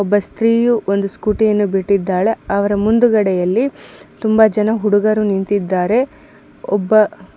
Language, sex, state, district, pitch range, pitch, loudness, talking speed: Kannada, female, Karnataka, Mysore, 200-225 Hz, 210 Hz, -15 LUFS, 120 wpm